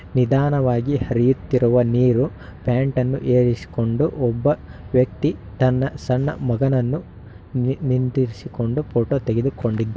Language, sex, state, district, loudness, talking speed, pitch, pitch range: Kannada, male, Karnataka, Shimoga, -20 LUFS, 85 wpm, 125 Hz, 120-135 Hz